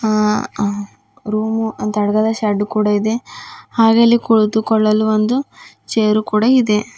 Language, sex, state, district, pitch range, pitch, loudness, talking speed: Kannada, female, Karnataka, Bidar, 210-225 Hz, 215 Hz, -16 LUFS, 120 wpm